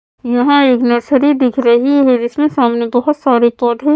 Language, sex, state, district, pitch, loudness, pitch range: Hindi, female, Maharashtra, Mumbai Suburban, 250 Hz, -12 LUFS, 240-285 Hz